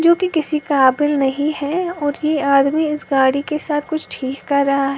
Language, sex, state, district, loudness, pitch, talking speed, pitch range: Hindi, female, Uttar Pradesh, Lalitpur, -18 LUFS, 295 Hz, 205 wpm, 275-310 Hz